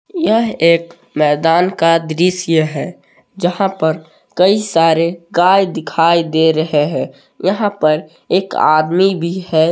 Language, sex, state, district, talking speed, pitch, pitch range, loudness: Hindi, male, Jharkhand, Palamu, 130 wpm, 170 Hz, 160-185 Hz, -14 LUFS